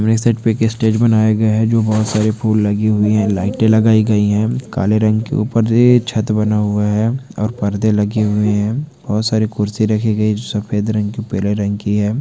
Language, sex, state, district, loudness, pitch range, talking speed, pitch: Hindi, male, West Bengal, Jalpaiguri, -15 LUFS, 105-110 Hz, 210 wpm, 110 Hz